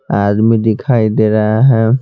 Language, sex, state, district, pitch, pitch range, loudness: Hindi, male, Bihar, Patna, 110 Hz, 110-115 Hz, -12 LUFS